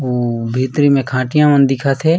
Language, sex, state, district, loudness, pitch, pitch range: Chhattisgarhi, male, Chhattisgarh, Raigarh, -14 LUFS, 135 Hz, 130-145 Hz